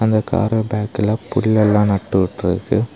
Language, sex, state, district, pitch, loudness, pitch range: Tamil, male, Tamil Nadu, Kanyakumari, 110 Hz, -18 LUFS, 105-110 Hz